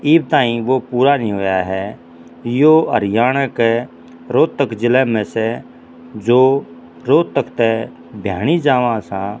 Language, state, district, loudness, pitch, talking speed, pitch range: Haryanvi, Haryana, Rohtak, -16 LUFS, 115 Hz, 135 wpm, 95-130 Hz